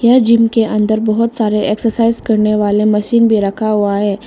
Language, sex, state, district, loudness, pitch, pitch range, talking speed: Hindi, female, Arunachal Pradesh, Lower Dibang Valley, -13 LUFS, 215 Hz, 210-230 Hz, 195 wpm